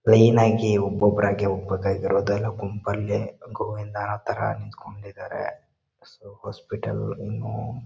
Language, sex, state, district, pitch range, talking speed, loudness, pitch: Kannada, male, Karnataka, Bijapur, 100-110 Hz, 100 wpm, -24 LUFS, 105 Hz